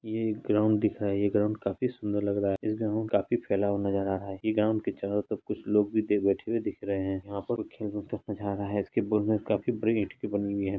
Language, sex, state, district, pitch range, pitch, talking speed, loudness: Hindi, male, Bihar, Araria, 100-110 Hz, 105 Hz, 260 wpm, -29 LUFS